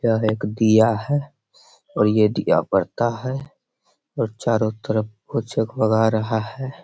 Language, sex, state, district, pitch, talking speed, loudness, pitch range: Hindi, male, Bihar, Begusarai, 110 Hz, 140 wpm, -21 LUFS, 110-120 Hz